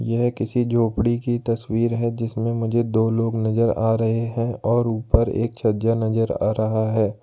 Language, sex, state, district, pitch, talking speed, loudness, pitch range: Hindi, male, Jharkhand, Ranchi, 115 Hz, 185 wpm, -22 LUFS, 110-115 Hz